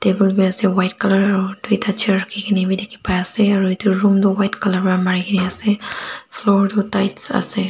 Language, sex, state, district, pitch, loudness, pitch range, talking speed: Nagamese, female, Nagaland, Dimapur, 195 Hz, -18 LUFS, 190-205 Hz, 195 wpm